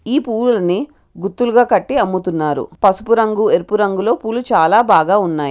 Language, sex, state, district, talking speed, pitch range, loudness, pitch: Telugu, female, Telangana, Karimnagar, 120 wpm, 180-235 Hz, -15 LUFS, 205 Hz